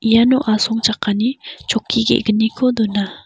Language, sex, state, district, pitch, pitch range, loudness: Garo, female, Meghalaya, West Garo Hills, 225 Hz, 215-240 Hz, -17 LUFS